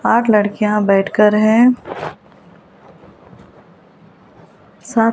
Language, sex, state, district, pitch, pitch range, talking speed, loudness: Hindi, female, Delhi, New Delhi, 215 Hz, 210-230 Hz, 60 wpm, -14 LUFS